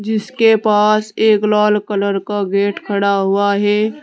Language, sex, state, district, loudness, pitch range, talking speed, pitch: Hindi, female, Uttar Pradesh, Saharanpur, -15 LUFS, 200-215 Hz, 150 wpm, 210 Hz